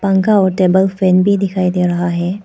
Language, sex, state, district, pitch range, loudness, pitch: Hindi, female, Arunachal Pradesh, Papum Pare, 180-195 Hz, -14 LUFS, 185 Hz